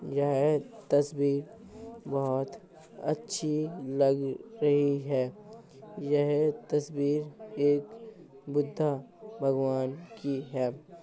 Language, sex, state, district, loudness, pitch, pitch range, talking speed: Hindi, male, Uttar Pradesh, Hamirpur, -30 LUFS, 145 Hz, 140-170 Hz, 75 wpm